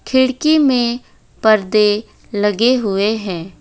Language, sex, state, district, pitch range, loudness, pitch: Hindi, female, West Bengal, Alipurduar, 205-255 Hz, -15 LUFS, 220 Hz